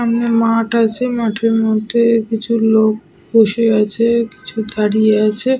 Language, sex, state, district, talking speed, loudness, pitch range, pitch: Bengali, female, Jharkhand, Sahebganj, 105 wpm, -15 LUFS, 215-230 Hz, 225 Hz